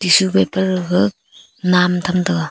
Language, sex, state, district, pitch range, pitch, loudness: Wancho, female, Arunachal Pradesh, Longding, 140-185 Hz, 180 Hz, -16 LUFS